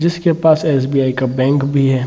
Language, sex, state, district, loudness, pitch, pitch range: Hindi, male, Bihar, Gaya, -15 LUFS, 140 Hz, 130-160 Hz